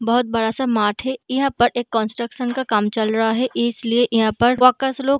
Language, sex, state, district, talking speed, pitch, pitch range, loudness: Hindi, female, Chhattisgarh, Balrampur, 220 wpm, 240 Hz, 225-255 Hz, -19 LUFS